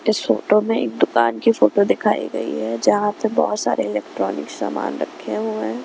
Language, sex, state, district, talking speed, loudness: Hindi, female, Punjab, Kapurthala, 195 wpm, -20 LUFS